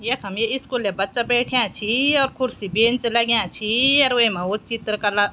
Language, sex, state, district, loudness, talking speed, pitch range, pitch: Garhwali, female, Uttarakhand, Tehri Garhwal, -20 LUFS, 180 wpm, 205-250 Hz, 230 Hz